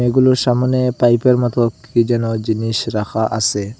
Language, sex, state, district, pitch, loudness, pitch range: Bengali, male, Assam, Hailakandi, 120 Hz, -16 LUFS, 110-125 Hz